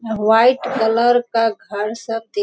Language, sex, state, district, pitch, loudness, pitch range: Hindi, female, Bihar, Sitamarhi, 225 Hz, -17 LUFS, 220-235 Hz